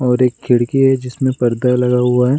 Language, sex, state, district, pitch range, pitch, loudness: Hindi, male, Bihar, Gaya, 125-130 Hz, 125 Hz, -15 LUFS